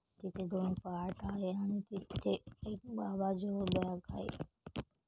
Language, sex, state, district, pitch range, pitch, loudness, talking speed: Marathi, female, Maharashtra, Chandrapur, 185-200 Hz, 190 Hz, -40 LUFS, 130 wpm